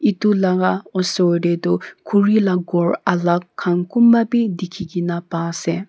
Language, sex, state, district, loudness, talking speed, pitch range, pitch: Nagamese, female, Nagaland, Kohima, -18 LUFS, 165 wpm, 175-200 Hz, 180 Hz